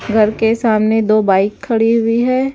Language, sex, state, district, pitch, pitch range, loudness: Hindi, female, Bihar, West Champaran, 225 Hz, 215-230 Hz, -14 LUFS